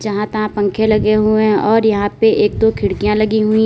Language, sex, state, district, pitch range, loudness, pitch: Hindi, female, Uttar Pradesh, Lalitpur, 210-220 Hz, -14 LUFS, 215 Hz